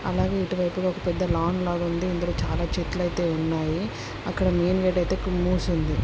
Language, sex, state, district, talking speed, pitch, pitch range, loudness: Telugu, female, Andhra Pradesh, Srikakulam, 180 wpm, 175 Hz, 175-185 Hz, -25 LUFS